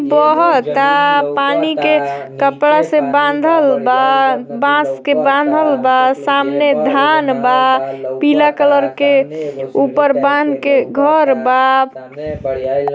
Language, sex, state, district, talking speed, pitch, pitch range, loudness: Bhojpuri, female, Uttar Pradesh, Ghazipur, 100 wpm, 275 Hz, 250-290 Hz, -13 LUFS